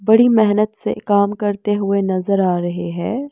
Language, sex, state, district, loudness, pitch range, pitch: Hindi, female, Bihar, West Champaran, -17 LUFS, 190-215 Hz, 205 Hz